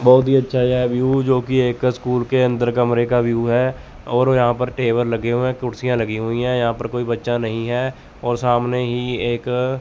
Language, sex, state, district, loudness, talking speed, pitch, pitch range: Hindi, male, Chandigarh, Chandigarh, -19 LUFS, 220 wpm, 125 Hz, 120-125 Hz